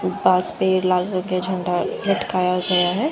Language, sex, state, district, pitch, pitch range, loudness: Hindi, female, Haryana, Jhajjar, 185 Hz, 180-185 Hz, -20 LUFS